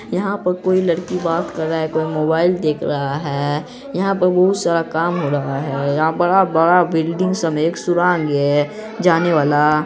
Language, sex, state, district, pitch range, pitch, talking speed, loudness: Hindi, female, Bihar, Araria, 150-180 Hz, 165 Hz, 190 wpm, -17 LUFS